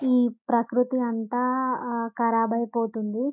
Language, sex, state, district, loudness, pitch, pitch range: Telugu, female, Telangana, Karimnagar, -25 LUFS, 235 Hz, 230-250 Hz